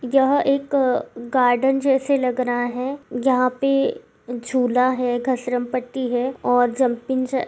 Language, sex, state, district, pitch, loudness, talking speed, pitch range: Hindi, female, Karnataka, Belgaum, 255 Hz, -21 LUFS, 135 wpm, 245-270 Hz